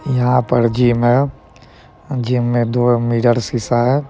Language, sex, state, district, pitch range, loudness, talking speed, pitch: Hindi, male, Bihar, Muzaffarpur, 120-125 Hz, -16 LUFS, 160 wpm, 120 Hz